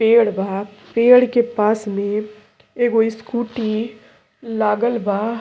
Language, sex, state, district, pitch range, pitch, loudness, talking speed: Bhojpuri, female, Uttar Pradesh, Deoria, 210-235 Hz, 220 Hz, -18 LUFS, 110 wpm